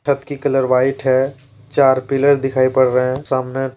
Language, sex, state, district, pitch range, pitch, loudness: Hindi, male, Jharkhand, Deoghar, 130-135 Hz, 130 Hz, -16 LUFS